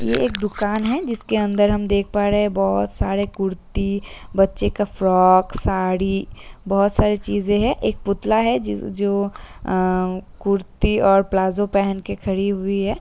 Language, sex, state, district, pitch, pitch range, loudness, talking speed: Hindi, female, Uttar Pradesh, Jalaun, 200 Hz, 190-205 Hz, -20 LUFS, 160 wpm